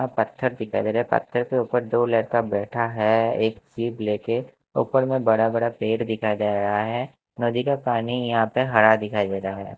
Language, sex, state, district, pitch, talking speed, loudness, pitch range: Hindi, male, Himachal Pradesh, Shimla, 115 Hz, 200 wpm, -23 LUFS, 110-120 Hz